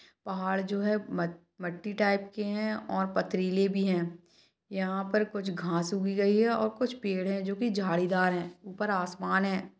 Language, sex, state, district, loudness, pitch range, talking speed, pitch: Hindi, female, Chhattisgarh, Balrampur, -30 LUFS, 185-210 Hz, 185 wpm, 195 Hz